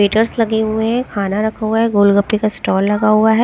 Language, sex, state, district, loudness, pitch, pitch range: Hindi, female, Haryana, Charkhi Dadri, -15 LUFS, 215 Hz, 205-220 Hz